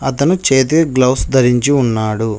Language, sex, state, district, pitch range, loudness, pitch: Telugu, male, Telangana, Mahabubabad, 115-140 Hz, -13 LUFS, 130 Hz